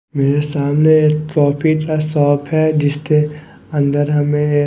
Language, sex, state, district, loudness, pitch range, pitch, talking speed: Hindi, male, Chhattisgarh, Raipur, -15 LUFS, 145-155 Hz, 150 Hz, 130 wpm